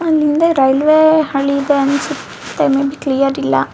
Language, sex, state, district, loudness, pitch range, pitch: Kannada, female, Karnataka, Mysore, -14 LUFS, 275-310 Hz, 280 Hz